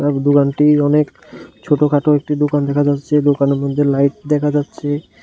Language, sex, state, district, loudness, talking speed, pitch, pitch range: Bengali, male, Tripura, West Tripura, -15 LUFS, 135 wpm, 145 Hz, 145-150 Hz